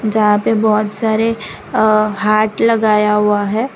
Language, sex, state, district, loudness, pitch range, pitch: Hindi, female, Gujarat, Valsad, -14 LUFS, 210-220 Hz, 215 Hz